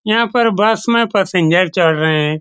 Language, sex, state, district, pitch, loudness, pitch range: Hindi, male, Bihar, Saran, 195 Hz, -14 LUFS, 165-230 Hz